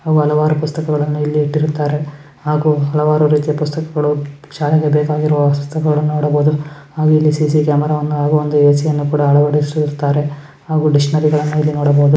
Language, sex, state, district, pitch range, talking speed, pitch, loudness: Kannada, female, Karnataka, Shimoga, 145-150 Hz, 130 wpm, 150 Hz, -15 LUFS